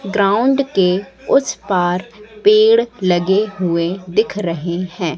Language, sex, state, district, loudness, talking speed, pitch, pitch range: Hindi, female, Madhya Pradesh, Katni, -16 LUFS, 115 wpm, 195 Hz, 180-220 Hz